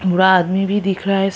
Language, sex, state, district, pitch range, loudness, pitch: Hindi, female, Chhattisgarh, Kabirdham, 185-195 Hz, -16 LUFS, 195 Hz